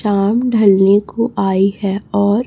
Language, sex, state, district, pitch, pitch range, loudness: Hindi, female, Chhattisgarh, Raipur, 200 Hz, 195-215 Hz, -14 LUFS